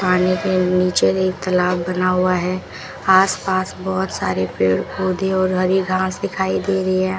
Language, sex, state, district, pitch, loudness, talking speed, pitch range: Hindi, female, Rajasthan, Bikaner, 185 Hz, -18 LUFS, 165 wpm, 180-190 Hz